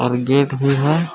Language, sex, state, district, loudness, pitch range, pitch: Hindi, male, Jharkhand, Palamu, -17 LUFS, 135-150 Hz, 140 Hz